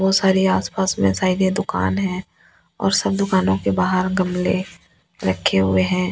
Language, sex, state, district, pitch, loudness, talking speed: Hindi, female, Delhi, New Delhi, 185 Hz, -19 LUFS, 165 wpm